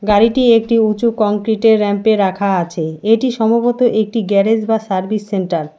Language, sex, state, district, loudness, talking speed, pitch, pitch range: Bengali, female, West Bengal, Alipurduar, -14 LUFS, 155 wpm, 215 Hz, 200-225 Hz